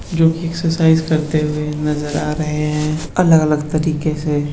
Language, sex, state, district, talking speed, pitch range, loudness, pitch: Hindi, male, Bihar, Purnia, 160 wpm, 150-160 Hz, -17 LUFS, 155 Hz